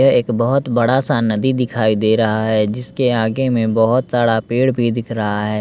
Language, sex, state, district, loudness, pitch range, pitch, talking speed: Hindi, male, Bihar, West Champaran, -16 LUFS, 110-125 Hz, 115 Hz, 215 wpm